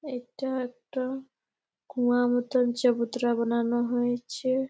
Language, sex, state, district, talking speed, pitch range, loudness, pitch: Bengali, female, West Bengal, Malda, 100 wpm, 240-260 Hz, -28 LUFS, 245 Hz